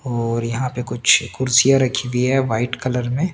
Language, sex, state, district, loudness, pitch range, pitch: Hindi, male, Chandigarh, Chandigarh, -18 LUFS, 120-130 Hz, 125 Hz